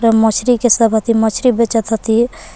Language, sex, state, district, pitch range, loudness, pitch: Magahi, female, Jharkhand, Palamu, 220-235 Hz, -14 LUFS, 225 Hz